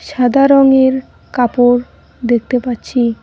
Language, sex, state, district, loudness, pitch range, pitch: Bengali, female, West Bengal, Cooch Behar, -13 LUFS, 245-265 Hz, 250 Hz